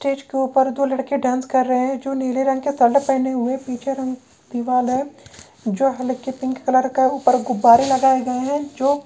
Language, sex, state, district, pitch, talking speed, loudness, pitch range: Marwari, female, Rajasthan, Nagaur, 265 Hz, 200 wpm, -19 LUFS, 255-270 Hz